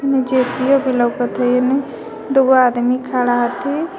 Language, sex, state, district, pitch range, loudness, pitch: Magahi, female, Jharkhand, Palamu, 245-270 Hz, -16 LUFS, 255 Hz